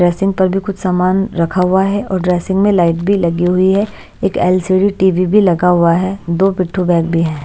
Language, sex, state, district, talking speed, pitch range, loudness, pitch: Hindi, female, Bihar, Patna, 225 wpm, 175-195 Hz, -14 LUFS, 185 Hz